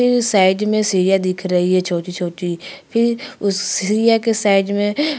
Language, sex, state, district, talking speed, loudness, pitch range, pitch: Hindi, female, Chhattisgarh, Sukma, 160 wpm, -17 LUFS, 185-225 Hz, 200 Hz